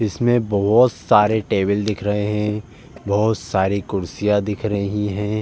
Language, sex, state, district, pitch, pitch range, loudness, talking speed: Hindi, male, Uttar Pradesh, Jalaun, 105 Hz, 100-110 Hz, -19 LUFS, 145 wpm